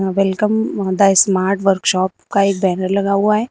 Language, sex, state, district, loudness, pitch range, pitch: Hindi, female, Uttar Pradesh, Lucknow, -16 LUFS, 190-200 Hz, 195 Hz